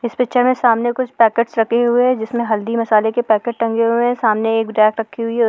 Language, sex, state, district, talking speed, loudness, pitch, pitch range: Hindi, female, Jharkhand, Sahebganj, 250 wpm, -16 LUFS, 230 Hz, 225-240 Hz